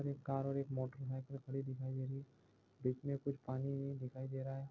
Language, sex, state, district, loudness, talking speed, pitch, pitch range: Hindi, male, Goa, North and South Goa, -43 LUFS, 215 wpm, 135 Hz, 130-140 Hz